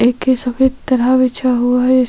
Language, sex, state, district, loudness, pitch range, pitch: Hindi, female, Chhattisgarh, Sukma, -14 LUFS, 245-260 Hz, 255 Hz